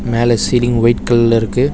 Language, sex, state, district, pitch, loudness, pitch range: Tamil, male, Tamil Nadu, Chennai, 120 Hz, -13 LUFS, 115-120 Hz